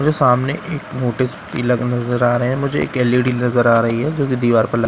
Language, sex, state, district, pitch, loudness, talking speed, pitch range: Hindi, male, Bihar, Katihar, 125 Hz, -17 LUFS, 260 wpm, 120-130 Hz